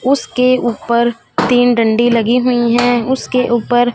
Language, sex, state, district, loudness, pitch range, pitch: Hindi, female, Punjab, Fazilka, -13 LUFS, 235-250 Hz, 245 Hz